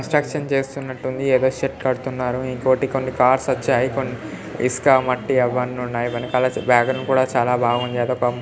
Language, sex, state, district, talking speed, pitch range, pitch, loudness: Telugu, male, Telangana, Nalgonda, 130 wpm, 125-130 Hz, 130 Hz, -20 LUFS